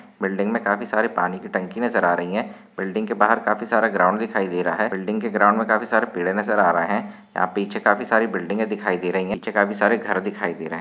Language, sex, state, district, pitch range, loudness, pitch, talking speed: Hindi, male, Maharashtra, Chandrapur, 90-110 Hz, -21 LUFS, 100 Hz, 270 wpm